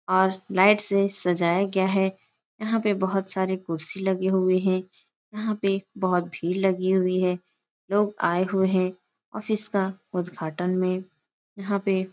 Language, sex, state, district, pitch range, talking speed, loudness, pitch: Hindi, female, Uttar Pradesh, Etah, 185-195 Hz, 170 wpm, -25 LUFS, 190 Hz